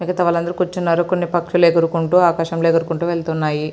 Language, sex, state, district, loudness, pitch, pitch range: Telugu, female, Andhra Pradesh, Srikakulam, -17 LUFS, 170 Hz, 165-175 Hz